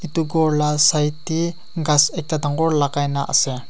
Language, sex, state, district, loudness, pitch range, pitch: Nagamese, male, Nagaland, Kohima, -19 LUFS, 145-165 Hz, 150 Hz